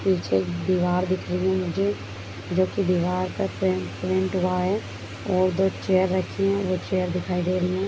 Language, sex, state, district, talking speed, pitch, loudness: Hindi, female, Bihar, Begusarai, 200 wpm, 180 Hz, -24 LUFS